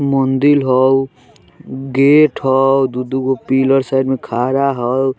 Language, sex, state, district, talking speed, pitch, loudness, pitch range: Hindi, male, Bihar, Vaishali, 140 wpm, 135 Hz, -14 LUFS, 130-135 Hz